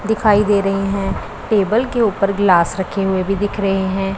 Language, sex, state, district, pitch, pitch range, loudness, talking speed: Hindi, male, Punjab, Pathankot, 195 Hz, 195-205 Hz, -17 LUFS, 200 wpm